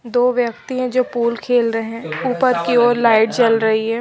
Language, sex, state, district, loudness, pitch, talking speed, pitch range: Hindi, female, Himachal Pradesh, Shimla, -17 LUFS, 235 Hz, 210 wpm, 225-245 Hz